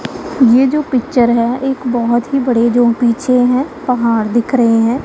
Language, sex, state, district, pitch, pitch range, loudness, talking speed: Hindi, female, Punjab, Pathankot, 245 Hz, 235-260 Hz, -13 LUFS, 180 wpm